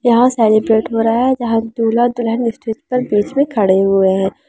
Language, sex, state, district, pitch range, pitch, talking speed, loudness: Hindi, female, Andhra Pradesh, Chittoor, 215-240 Hz, 225 Hz, 185 wpm, -14 LUFS